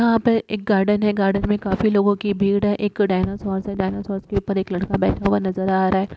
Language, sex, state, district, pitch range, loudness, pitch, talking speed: Hindi, female, Uttar Pradesh, Muzaffarnagar, 195-205 Hz, -20 LUFS, 200 Hz, 255 wpm